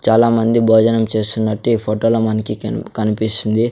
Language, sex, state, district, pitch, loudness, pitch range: Telugu, male, Andhra Pradesh, Sri Satya Sai, 110 Hz, -15 LUFS, 110-115 Hz